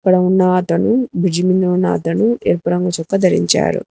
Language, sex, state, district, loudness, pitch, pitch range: Telugu, female, Telangana, Hyderabad, -15 LUFS, 185 Hz, 180-185 Hz